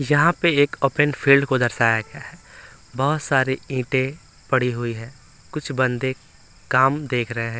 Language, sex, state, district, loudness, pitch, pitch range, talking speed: Hindi, male, Bihar, Patna, -21 LUFS, 130 Hz, 120-145 Hz, 165 wpm